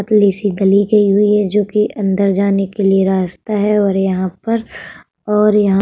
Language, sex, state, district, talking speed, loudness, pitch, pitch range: Hindi, female, Uttar Pradesh, Budaun, 195 wpm, -14 LUFS, 200 Hz, 195-210 Hz